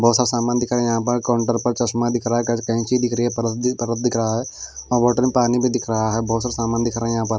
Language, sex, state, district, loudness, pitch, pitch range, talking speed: Hindi, male, Delhi, New Delhi, -20 LUFS, 120 Hz, 115-120 Hz, 335 wpm